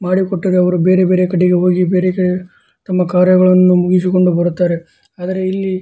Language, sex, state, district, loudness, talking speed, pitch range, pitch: Kannada, male, Karnataka, Dharwad, -13 LUFS, 135 wpm, 180-185 Hz, 185 Hz